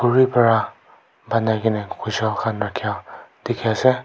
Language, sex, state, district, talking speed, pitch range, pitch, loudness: Nagamese, male, Nagaland, Kohima, 135 wpm, 110-125 Hz, 115 Hz, -20 LUFS